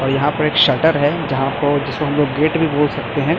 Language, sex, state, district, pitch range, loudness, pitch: Hindi, male, Chhattisgarh, Raipur, 140-150 Hz, -16 LUFS, 145 Hz